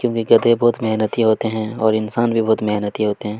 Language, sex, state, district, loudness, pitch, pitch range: Hindi, male, Chhattisgarh, Kabirdham, -18 LUFS, 110 Hz, 110-115 Hz